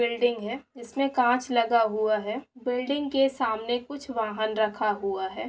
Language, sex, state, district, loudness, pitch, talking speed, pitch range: Hindi, female, Bihar, Saran, -27 LUFS, 235 Hz, 165 wpm, 215-255 Hz